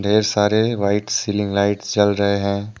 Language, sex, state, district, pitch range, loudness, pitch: Hindi, male, Jharkhand, Deoghar, 100-105 Hz, -19 LUFS, 105 Hz